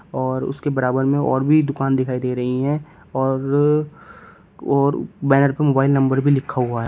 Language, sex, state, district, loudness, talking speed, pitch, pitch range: Hindi, male, Uttar Pradesh, Shamli, -19 LUFS, 175 wpm, 135 Hz, 130-145 Hz